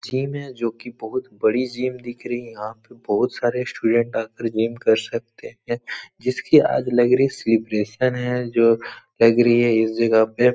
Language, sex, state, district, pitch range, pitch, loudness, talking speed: Hindi, male, Bihar, Supaul, 115-125 Hz, 120 Hz, -20 LUFS, 195 wpm